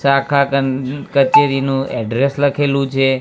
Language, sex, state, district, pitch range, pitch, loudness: Gujarati, male, Gujarat, Gandhinagar, 135-140 Hz, 140 Hz, -16 LUFS